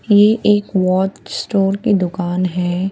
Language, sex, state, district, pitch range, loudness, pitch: Hindi, female, Bihar, Patna, 180-205 Hz, -16 LUFS, 195 Hz